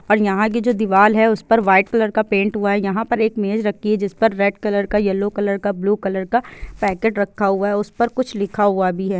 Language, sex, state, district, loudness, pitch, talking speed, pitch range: Hindi, female, Chhattisgarh, Bilaspur, -18 LUFS, 205 Hz, 280 wpm, 200-220 Hz